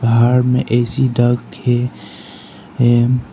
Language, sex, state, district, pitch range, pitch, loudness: Hindi, male, Arunachal Pradesh, Papum Pare, 120-125 Hz, 120 Hz, -15 LUFS